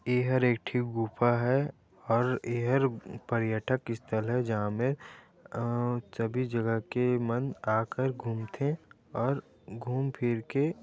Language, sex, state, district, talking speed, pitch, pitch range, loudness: Chhattisgarhi, male, Chhattisgarh, Raigarh, 135 wpm, 120 Hz, 115-130 Hz, -31 LUFS